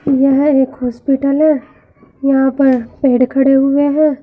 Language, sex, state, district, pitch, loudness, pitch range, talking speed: Hindi, female, Uttar Pradesh, Saharanpur, 275 Hz, -13 LUFS, 265-285 Hz, 140 wpm